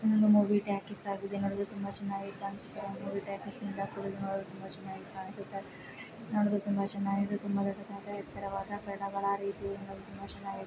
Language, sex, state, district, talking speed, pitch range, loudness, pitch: Kannada, male, Karnataka, Bijapur, 155 wpm, 195-200 Hz, -35 LUFS, 200 Hz